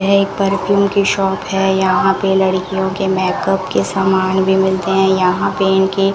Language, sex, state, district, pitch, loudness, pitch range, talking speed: Hindi, female, Rajasthan, Bikaner, 190 Hz, -15 LUFS, 190-195 Hz, 195 wpm